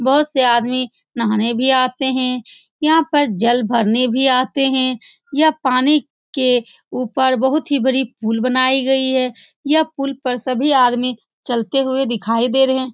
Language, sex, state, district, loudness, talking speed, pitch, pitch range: Hindi, female, Bihar, Saran, -16 LUFS, 175 wpm, 255 Hz, 245-270 Hz